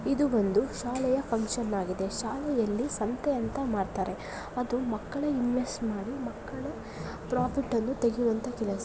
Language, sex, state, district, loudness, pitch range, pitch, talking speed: Kannada, female, Karnataka, Belgaum, -31 LUFS, 220-260 Hz, 245 Hz, 130 wpm